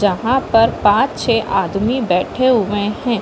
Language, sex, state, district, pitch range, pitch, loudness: Hindi, female, Chhattisgarh, Bilaspur, 205-255 Hz, 225 Hz, -16 LUFS